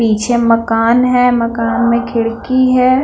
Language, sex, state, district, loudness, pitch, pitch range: Hindi, female, Bihar, Patna, -13 LUFS, 235 Hz, 230-250 Hz